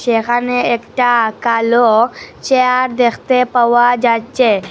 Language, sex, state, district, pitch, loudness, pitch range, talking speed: Bengali, female, Assam, Hailakandi, 240 Hz, -13 LUFS, 230-250 Hz, 90 wpm